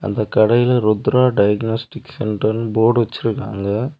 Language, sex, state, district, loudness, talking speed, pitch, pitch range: Tamil, male, Tamil Nadu, Kanyakumari, -17 LUFS, 105 wpm, 115 Hz, 110-125 Hz